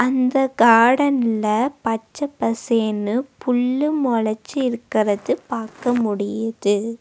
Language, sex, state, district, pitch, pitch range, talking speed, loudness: Tamil, female, Tamil Nadu, Nilgiris, 230 Hz, 220-260 Hz, 85 wpm, -20 LUFS